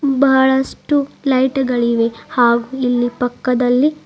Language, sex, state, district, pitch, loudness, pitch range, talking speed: Kannada, female, Karnataka, Bidar, 255 Hz, -16 LUFS, 245-270 Hz, 90 wpm